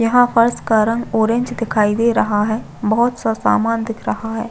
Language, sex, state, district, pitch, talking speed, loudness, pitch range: Hindi, female, Chhattisgarh, Bastar, 225 Hz, 215 wpm, -17 LUFS, 220-235 Hz